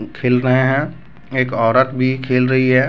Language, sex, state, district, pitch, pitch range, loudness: Hindi, male, Jharkhand, Deoghar, 130 Hz, 125-130 Hz, -16 LUFS